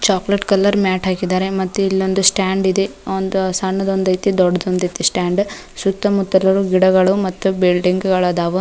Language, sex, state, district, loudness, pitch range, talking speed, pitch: Kannada, female, Karnataka, Dharwad, -16 LUFS, 185-195 Hz, 130 wpm, 190 Hz